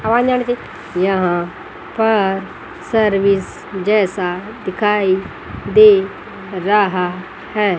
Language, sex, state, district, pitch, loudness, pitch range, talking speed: Hindi, female, Chandigarh, Chandigarh, 200 Hz, -16 LUFS, 185-220 Hz, 60 wpm